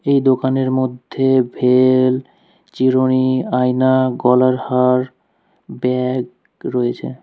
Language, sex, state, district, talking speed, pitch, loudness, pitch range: Bengali, male, West Bengal, Alipurduar, 85 wpm, 130 Hz, -16 LUFS, 125-130 Hz